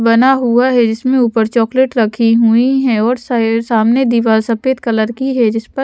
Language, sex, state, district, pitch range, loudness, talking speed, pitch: Hindi, female, Chhattisgarh, Raipur, 225-255 Hz, -13 LUFS, 185 wpm, 235 Hz